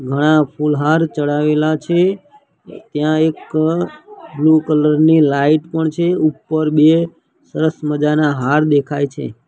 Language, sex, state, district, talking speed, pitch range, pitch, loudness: Gujarati, male, Gujarat, Gandhinagar, 125 wpm, 150-160 Hz, 155 Hz, -15 LUFS